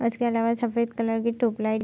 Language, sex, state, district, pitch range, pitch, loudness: Hindi, female, Bihar, Araria, 225-235 Hz, 230 Hz, -25 LUFS